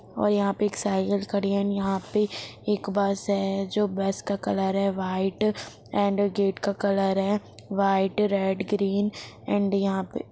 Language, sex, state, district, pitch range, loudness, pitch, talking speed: Hindi, female, Bihar, Gopalganj, 195-205 Hz, -26 LUFS, 200 Hz, 180 wpm